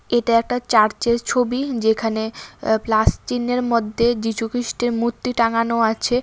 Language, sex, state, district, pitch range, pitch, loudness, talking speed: Bengali, female, Tripura, West Tripura, 225-245 Hz, 235 Hz, -20 LUFS, 135 wpm